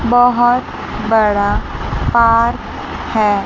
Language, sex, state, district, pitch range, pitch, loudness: Hindi, female, Chandigarh, Chandigarh, 210-240 Hz, 230 Hz, -15 LUFS